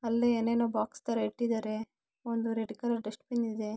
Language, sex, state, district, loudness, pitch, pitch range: Kannada, female, Karnataka, Gulbarga, -32 LUFS, 230 Hz, 220-235 Hz